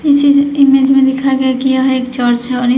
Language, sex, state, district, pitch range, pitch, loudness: Hindi, female, Uttar Pradesh, Shamli, 255-275 Hz, 265 Hz, -11 LUFS